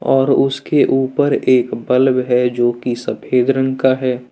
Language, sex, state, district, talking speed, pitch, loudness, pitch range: Hindi, male, Jharkhand, Deoghar, 165 wpm, 130 Hz, -15 LUFS, 125-130 Hz